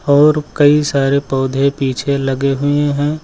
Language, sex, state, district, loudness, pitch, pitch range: Hindi, male, Uttar Pradesh, Lucknow, -14 LUFS, 140 Hz, 135-145 Hz